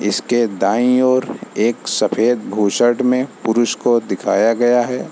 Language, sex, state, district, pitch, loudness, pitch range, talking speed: Hindi, male, Bihar, East Champaran, 120 Hz, -16 LUFS, 115-125 Hz, 140 wpm